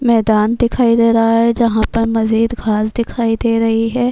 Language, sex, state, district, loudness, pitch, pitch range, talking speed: Urdu, female, Bihar, Kishanganj, -14 LUFS, 230 Hz, 225-235 Hz, 190 wpm